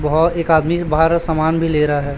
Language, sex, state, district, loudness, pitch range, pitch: Hindi, male, Chhattisgarh, Raipur, -16 LUFS, 150-165 Hz, 160 Hz